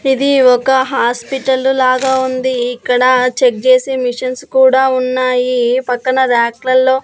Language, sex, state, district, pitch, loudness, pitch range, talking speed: Telugu, female, Andhra Pradesh, Annamaya, 255 Hz, -13 LUFS, 250-265 Hz, 120 wpm